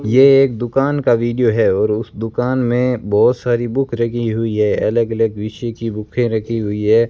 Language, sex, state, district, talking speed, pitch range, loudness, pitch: Hindi, male, Rajasthan, Bikaner, 205 wpm, 110-125 Hz, -16 LUFS, 115 Hz